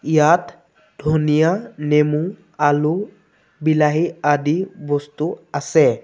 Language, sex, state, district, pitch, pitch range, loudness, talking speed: Assamese, male, Assam, Sonitpur, 155 Hz, 150-175 Hz, -19 LUFS, 80 wpm